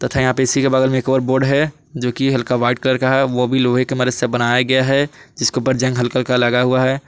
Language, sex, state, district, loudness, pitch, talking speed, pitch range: Hindi, male, Jharkhand, Palamu, -17 LUFS, 130 Hz, 295 wpm, 125-135 Hz